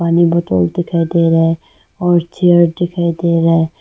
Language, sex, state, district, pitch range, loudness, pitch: Hindi, female, Arunachal Pradesh, Longding, 165-175 Hz, -14 LUFS, 170 Hz